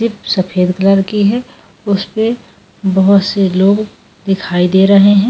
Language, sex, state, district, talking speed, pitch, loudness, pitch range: Hindi, female, Goa, North and South Goa, 145 wpm, 200 Hz, -12 LUFS, 190-210 Hz